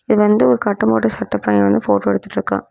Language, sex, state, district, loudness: Tamil, female, Tamil Nadu, Namakkal, -16 LUFS